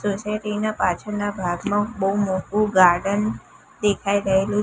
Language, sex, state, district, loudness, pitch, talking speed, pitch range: Gujarati, female, Gujarat, Gandhinagar, -22 LUFS, 205 Hz, 115 wpm, 190-210 Hz